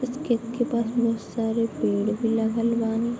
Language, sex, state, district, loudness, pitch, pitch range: Bhojpuri, female, Bihar, Gopalganj, -25 LUFS, 230 Hz, 225-235 Hz